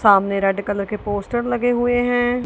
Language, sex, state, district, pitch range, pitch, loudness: Hindi, female, Punjab, Kapurthala, 200-245 Hz, 220 Hz, -20 LUFS